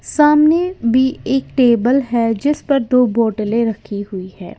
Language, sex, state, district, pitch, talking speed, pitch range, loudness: Hindi, female, Uttar Pradesh, Lalitpur, 240 Hz, 155 wpm, 220-275 Hz, -15 LUFS